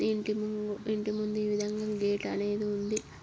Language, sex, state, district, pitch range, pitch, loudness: Telugu, female, Andhra Pradesh, Guntur, 210-215 Hz, 210 Hz, -32 LUFS